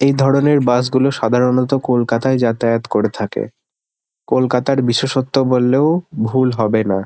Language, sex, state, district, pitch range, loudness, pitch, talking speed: Bengali, male, West Bengal, Kolkata, 120-135 Hz, -16 LUFS, 130 Hz, 120 wpm